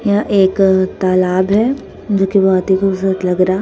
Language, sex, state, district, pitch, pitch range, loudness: Hindi, female, Bihar, Muzaffarpur, 190 Hz, 185-200 Hz, -14 LUFS